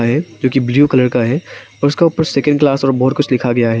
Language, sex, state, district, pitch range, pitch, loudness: Hindi, male, Arunachal Pradesh, Papum Pare, 125-145 Hz, 135 Hz, -14 LUFS